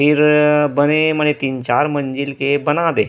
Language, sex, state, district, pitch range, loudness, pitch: Chhattisgarhi, male, Chhattisgarh, Rajnandgaon, 140-150 Hz, -16 LUFS, 150 Hz